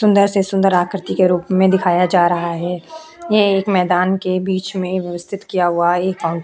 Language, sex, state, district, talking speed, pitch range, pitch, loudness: Hindi, female, Uttar Pradesh, Jalaun, 225 wpm, 175-195 Hz, 185 Hz, -16 LUFS